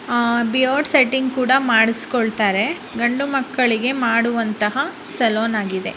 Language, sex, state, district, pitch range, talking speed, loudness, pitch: Kannada, female, Karnataka, Bellary, 225-265 Hz, 100 wpm, -18 LUFS, 240 Hz